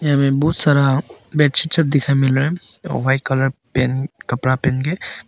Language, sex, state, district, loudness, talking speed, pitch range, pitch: Hindi, male, Arunachal Pradesh, Papum Pare, -17 LUFS, 135 wpm, 135-150 Hz, 140 Hz